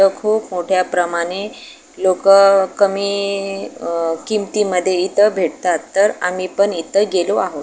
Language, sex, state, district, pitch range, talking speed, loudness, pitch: Marathi, female, Maharashtra, Aurangabad, 180-200 Hz, 135 wpm, -17 LUFS, 195 Hz